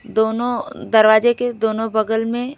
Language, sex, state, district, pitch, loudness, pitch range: Hindi, female, Odisha, Khordha, 225 Hz, -17 LUFS, 220-240 Hz